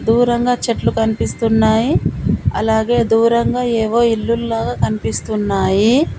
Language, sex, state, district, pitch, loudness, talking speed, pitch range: Telugu, female, Telangana, Komaram Bheem, 225 Hz, -16 LUFS, 80 wpm, 220-235 Hz